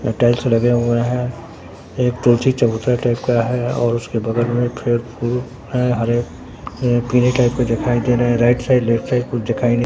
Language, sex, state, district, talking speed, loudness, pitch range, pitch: Hindi, male, Bihar, Katihar, 200 wpm, -18 LUFS, 120-125 Hz, 120 Hz